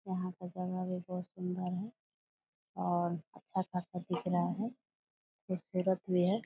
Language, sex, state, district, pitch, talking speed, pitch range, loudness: Hindi, female, Bihar, Purnia, 180 Hz, 160 wpm, 180-185 Hz, -37 LUFS